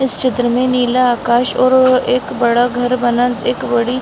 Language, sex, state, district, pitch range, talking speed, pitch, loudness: Hindi, female, Bihar, Bhagalpur, 240-255 Hz, 195 wpm, 250 Hz, -14 LUFS